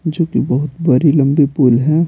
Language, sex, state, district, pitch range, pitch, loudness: Hindi, male, Bihar, Patna, 135-160 Hz, 145 Hz, -14 LUFS